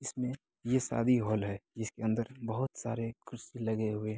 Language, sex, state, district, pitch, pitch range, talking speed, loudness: Hindi, male, Bihar, Begusarai, 115 Hz, 110-125 Hz, 185 wpm, -34 LUFS